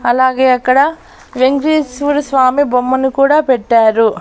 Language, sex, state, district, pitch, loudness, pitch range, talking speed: Telugu, female, Andhra Pradesh, Annamaya, 260 Hz, -12 LUFS, 250-285 Hz, 100 wpm